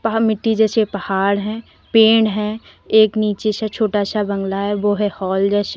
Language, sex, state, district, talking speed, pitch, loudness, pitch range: Hindi, female, Uttar Pradesh, Lalitpur, 185 wpm, 210 Hz, -17 LUFS, 205-220 Hz